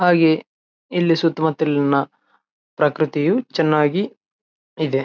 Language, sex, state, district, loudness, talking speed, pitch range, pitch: Kannada, male, Karnataka, Bellary, -19 LUFS, 70 wpm, 150-175 Hz, 160 Hz